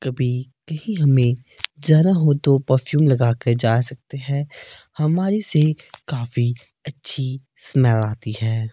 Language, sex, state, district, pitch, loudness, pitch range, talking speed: Hindi, male, Himachal Pradesh, Shimla, 135 Hz, -20 LUFS, 120-150 Hz, 130 wpm